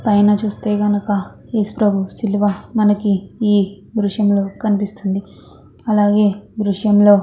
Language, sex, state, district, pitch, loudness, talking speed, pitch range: Telugu, female, Andhra Pradesh, Chittoor, 205 Hz, -17 LUFS, 135 wpm, 200-210 Hz